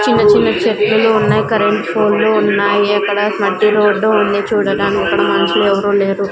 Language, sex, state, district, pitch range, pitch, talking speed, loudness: Telugu, female, Andhra Pradesh, Sri Satya Sai, 205-215 Hz, 210 Hz, 170 wpm, -13 LUFS